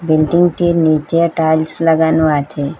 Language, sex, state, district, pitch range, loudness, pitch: Bengali, female, Assam, Hailakandi, 155-165 Hz, -13 LUFS, 160 Hz